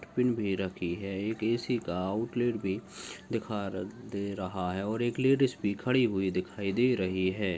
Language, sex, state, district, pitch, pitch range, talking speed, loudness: Hindi, male, Rajasthan, Nagaur, 100 Hz, 95-120 Hz, 180 wpm, -31 LUFS